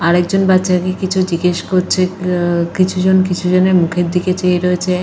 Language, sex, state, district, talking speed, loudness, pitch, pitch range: Bengali, female, Jharkhand, Jamtara, 155 wpm, -14 LUFS, 180 Hz, 180-185 Hz